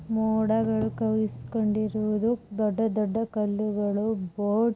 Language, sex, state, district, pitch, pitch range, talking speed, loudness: Kannada, female, Karnataka, Chamarajanagar, 215 Hz, 210-220 Hz, 100 wpm, -27 LUFS